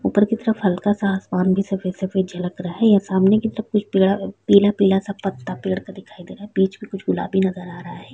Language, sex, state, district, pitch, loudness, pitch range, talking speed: Hindi, female, Bihar, Vaishali, 195 Hz, -20 LUFS, 185-205 Hz, 245 wpm